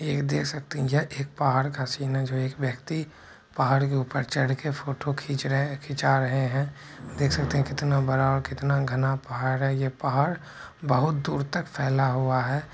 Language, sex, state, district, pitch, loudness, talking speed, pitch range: Hindi, male, Bihar, Purnia, 140 Hz, -26 LUFS, 195 wpm, 135-145 Hz